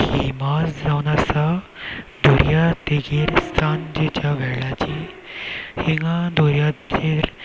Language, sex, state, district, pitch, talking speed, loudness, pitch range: Konkani, male, Goa, North and South Goa, 150 Hz, 70 wpm, -20 LUFS, 145-160 Hz